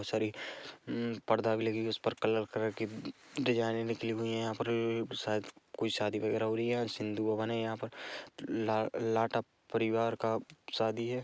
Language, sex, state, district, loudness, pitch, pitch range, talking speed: Hindi, male, Chhattisgarh, Rajnandgaon, -34 LUFS, 110 Hz, 110-115 Hz, 205 wpm